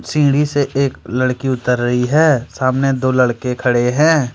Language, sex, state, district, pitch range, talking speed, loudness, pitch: Hindi, male, Jharkhand, Ranchi, 125-140 Hz, 165 wpm, -16 LUFS, 130 Hz